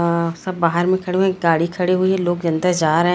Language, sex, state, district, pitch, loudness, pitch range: Hindi, female, Chhattisgarh, Raipur, 175 Hz, -18 LUFS, 170-185 Hz